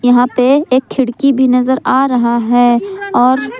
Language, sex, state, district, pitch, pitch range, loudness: Hindi, female, Jharkhand, Palamu, 255 Hz, 245-265 Hz, -12 LUFS